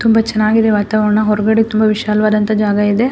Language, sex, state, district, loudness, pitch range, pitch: Kannada, female, Karnataka, Dakshina Kannada, -13 LUFS, 210-220 Hz, 215 Hz